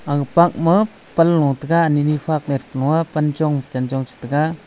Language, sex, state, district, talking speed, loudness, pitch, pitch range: Wancho, male, Arunachal Pradesh, Longding, 205 wpm, -18 LUFS, 150 Hz, 140-165 Hz